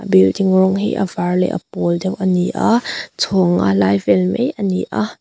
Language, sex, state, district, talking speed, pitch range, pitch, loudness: Mizo, female, Mizoram, Aizawl, 230 wpm, 170-195 Hz, 185 Hz, -16 LUFS